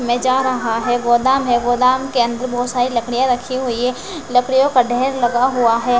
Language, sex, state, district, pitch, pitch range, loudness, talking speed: Hindi, female, Bihar, West Champaran, 245 Hz, 240-260 Hz, -17 LUFS, 210 wpm